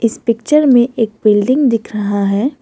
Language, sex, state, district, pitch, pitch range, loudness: Hindi, female, Assam, Kamrup Metropolitan, 230 Hz, 215-260 Hz, -13 LUFS